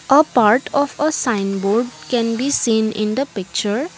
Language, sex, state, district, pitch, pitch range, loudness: English, female, Assam, Kamrup Metropolitan, 235 Hz, 210-275 Hz, -18 LUFS